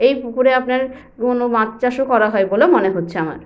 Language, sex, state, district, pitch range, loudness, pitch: Bengali, female, West Bengal, Jhargram, 205-255 Hz, -17 LUFS, 245 Hz